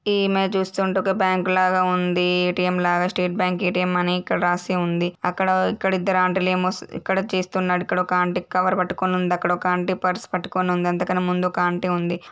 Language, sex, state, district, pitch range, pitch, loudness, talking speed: Telugu, female, Andhra Pradesh, Srikakulam, 180-185 Hz, 180 Hz, -21 LUFS, 195 wpm